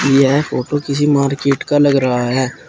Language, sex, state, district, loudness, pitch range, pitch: Hindi, male, Uttar Pradesh, Shamli, -15 LUFS, 130-145 Hz, 140 Hz